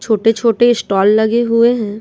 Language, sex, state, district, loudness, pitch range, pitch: Hindi, female, Bihar, Patna, -13 LUFS, 215-235 Hz, 225 Hz